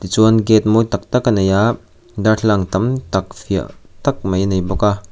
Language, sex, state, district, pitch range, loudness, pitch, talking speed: Mizo, male, Mizoram, Aizawl, 95-115 Hz, -16 LUFS, 105 Hz, 210 wpm